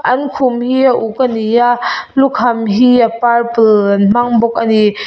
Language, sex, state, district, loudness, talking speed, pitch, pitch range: Mizo, female, Mizoram, Aizawl, -12 LUFS, 200 wpm, 235 Hz, 225-250 Hz